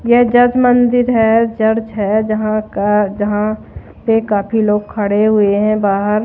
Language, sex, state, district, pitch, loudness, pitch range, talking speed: Hindi, female, Odisha, Malkangiri, 215 Hz, -14 LUFS, 210-230 Hz, 155 wpm